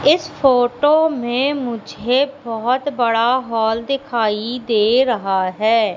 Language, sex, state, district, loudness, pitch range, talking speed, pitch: Hindi, female, Madhya Pradesh, Katni, -17 LUFS, 225-270 Hz, 110 wpm, 245 Hz